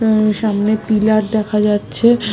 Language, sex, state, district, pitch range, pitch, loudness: Bengali, female, West Bengal, Malda, 210-220 Hz, 215 Hz, -15 LUFS